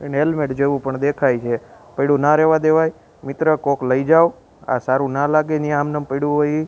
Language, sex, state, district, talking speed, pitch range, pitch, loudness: Gujarati, male, Gujarat, Gandhinagar, 215 wpm, 135-155 Hz, 145 Hz, -18 LUFS